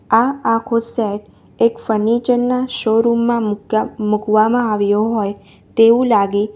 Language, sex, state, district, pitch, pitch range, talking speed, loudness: Gujarati, female, Gujarat, Valsad, 225 Hz, 210-235 Hz, 135 wpm, -16 LUFS